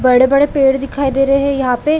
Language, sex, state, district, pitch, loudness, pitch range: Hindi, female, Chhattisgarh, Bilaspur, 275 Hz, -13 LUFS, 265-280 Hz